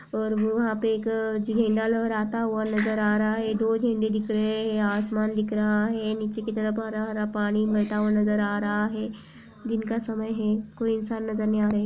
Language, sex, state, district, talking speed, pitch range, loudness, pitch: Hindi, female, Uttar Pradesh, Jalaun, 210 wpm, 215-220 Hz, -26 LUFS, 215 Hz